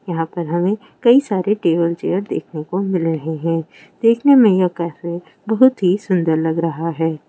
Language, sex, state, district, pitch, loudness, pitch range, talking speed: Hindi, female, Rajasthan, Churu, 175 Hz, -17 LUFS, 165-200 Hz, 165 wpm